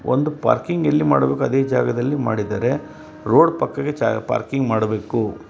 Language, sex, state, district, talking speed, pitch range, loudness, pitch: Kannada, male, Karnataka, Bellary, 130 wpm, 110-140 Hz, -19 LUFS, 130 Hz